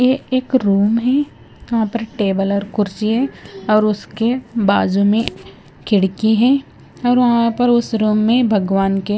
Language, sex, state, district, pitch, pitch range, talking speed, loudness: Hindi, female, Bihar, West Champaran, 220 Hz, 205-245 Hz, 165 wpm, -16 LUFS